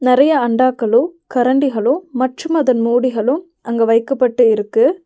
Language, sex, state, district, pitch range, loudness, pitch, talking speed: Tamil, female, Tamil Nadu, Nilgiris, 235-280 Hz, -15 LUFS, 255 Hz, 105 wpm